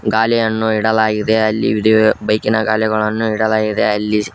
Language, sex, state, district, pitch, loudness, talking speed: Kannada, male, Karnataka, Koppal, 110 Hz, -15 LUFS, 140 wpm